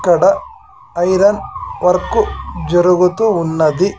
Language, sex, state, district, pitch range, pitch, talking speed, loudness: Telugu, male, Andhra Pradesh, Sri Satya Sai, 175-225 Hz, 185 Hz, 90 wpm, -14 LUFS